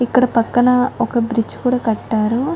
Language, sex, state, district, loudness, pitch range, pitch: Telugu, female, Telangana, Karimnagar, -17 LUFS, 230-250 Hz, 240 Hz